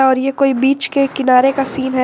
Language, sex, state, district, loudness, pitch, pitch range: Hindi, female, Jharkhand, Garhwa, -14 LUFS, 270 Hz, 260-275 Hz